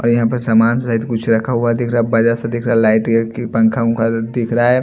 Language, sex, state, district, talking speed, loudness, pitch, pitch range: Hindi, male, Haryana, Jhajjar, 250 wpm, -15 LUFS, 115 Hz, 115-120 Hz